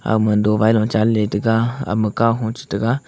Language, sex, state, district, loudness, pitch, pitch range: Wancho, male, Arunachal Pradesh, Longding, -18 LUFS, 110 Hz, 105-115 Hz